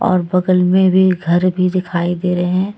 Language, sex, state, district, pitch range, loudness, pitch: Hindi, female, Jharkhand, Deoghar, 180-185 Hz, -15 LUFS, 180 Hz